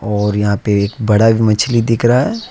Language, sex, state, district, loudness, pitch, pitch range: Hindi, male, Jharkhand, Ranchi, -14 LUFS, 110 Hz, 105-115 Hz